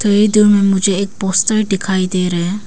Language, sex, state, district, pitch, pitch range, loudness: Hindi, female, Arunachal Pradesh, Papum Pare, 195 Hz, 190-210 Hz, -14 LUFS